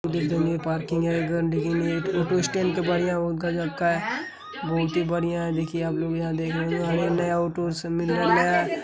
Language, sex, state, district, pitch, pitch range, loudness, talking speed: Hindi, male, Uttar Pradesh, Hamirpur, 170 Hz, 165-175 Hz, -25 LUFS, 175 wpm